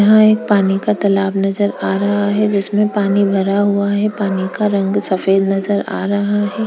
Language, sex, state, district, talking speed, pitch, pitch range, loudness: Hindi, female, Chhattisgarh, Korba, 200 wpm, 200 Hz, 195-205 Hz, -15 LUFS